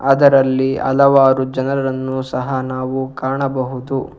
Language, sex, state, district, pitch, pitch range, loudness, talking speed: Kannada, male, Karnataka, Bangalore, 130 Hz, 130-135 Hz, -16 LUFS, 85 wpm